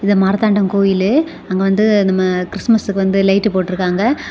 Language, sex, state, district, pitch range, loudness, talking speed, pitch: Tamil, female, Tamil Nadu, Kanyakumari, 190-210 Hz, -15 LUFS, 140 wpm, 195 Hz